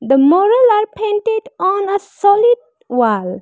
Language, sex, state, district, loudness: English, female, Arunachal Pradesh, Lower Dibang Valley, -14 LUFS